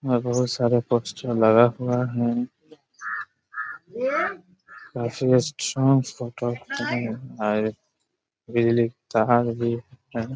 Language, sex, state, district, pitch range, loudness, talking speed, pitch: Hindi, male, Bihar, Jahanabad, 120-130 Hz, -24 LUFS, 105 wpm, 120 Hz